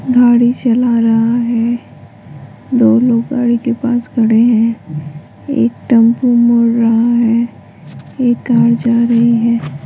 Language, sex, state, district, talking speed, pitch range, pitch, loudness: Hindi, female, Uttar Pradesh, Hamirpur, 130 wpm, 230-240 Hz, 235 Hz, -12 LUFS